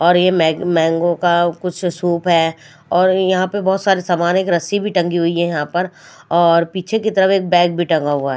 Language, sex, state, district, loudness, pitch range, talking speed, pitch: Hindi, female, Maharashtra, Mumbai Suburban, -16 LUFS, 170-185 Hz, 220 wpm, 175 Hz